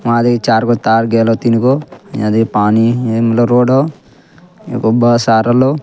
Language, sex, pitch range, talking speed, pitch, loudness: Angika, male, 115-130 Hz, 145 wpm, 120 Hz, -12 LUFS